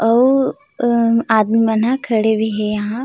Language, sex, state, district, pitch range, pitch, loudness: Chhattisgarhi, female, Chhattisgarh, Rajnandgaon, 220-245 Hz, 230 Hz, -16 LUFS